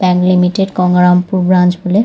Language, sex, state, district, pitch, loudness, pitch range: Bengali, female, West Bengal, Dakshin Dinajpur, 180 Hz, -11 LUFS, 180-185 Hz